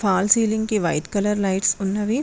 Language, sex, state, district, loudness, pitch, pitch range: Telugu, female, Telangana, Mahabubabad, -20 LUFS, 205 Hz, 195-215 Hz